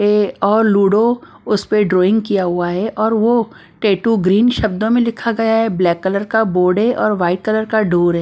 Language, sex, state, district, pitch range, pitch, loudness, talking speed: Hindi, female, Bihar, Patna, 190-225 Hz, 210 Hz, -15 LUFS, 205 wpm